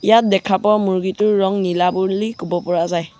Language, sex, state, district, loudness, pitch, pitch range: Assamese, male, Assam, Sonitpur, -17 LUFS, 190 Hz, 180-210 Hz